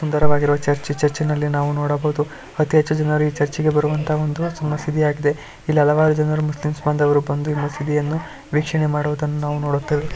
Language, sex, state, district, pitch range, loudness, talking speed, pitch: Kannada, male, Karnataka, Shimoga, 145-155 Hz, -20 LUFS, 135 wpm, 150 Hz